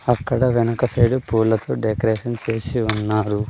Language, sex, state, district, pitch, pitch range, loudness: Telugu, male, Andhra Pradesh, Sri Satya Sai, 115 Hz, 110-120 Hz, -20 LUFS